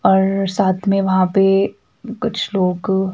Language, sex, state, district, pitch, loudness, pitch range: Hindi, female, Himachal Pradesh, Shimla, 190 Hz, -17 LUFS, 185-195 Hz